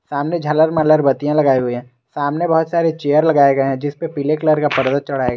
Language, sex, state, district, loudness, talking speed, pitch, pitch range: Hindi, male, Jharkhand, Garhwa, -16 LUFS, 255 wpm, 145 Hz, 135-155 Hz